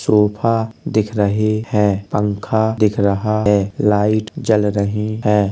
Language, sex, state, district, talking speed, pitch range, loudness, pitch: Hindi, male, Uttar Pradesh, Jalaun, 130 wpm, 105-110 Hz, -17 LUFS, 105 Hz